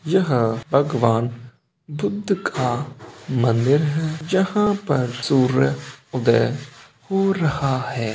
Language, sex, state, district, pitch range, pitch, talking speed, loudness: Hindi, male, Bihar, Purnia, 120-160 Hz, 140 Hz, 95 wpm, -21 LUFS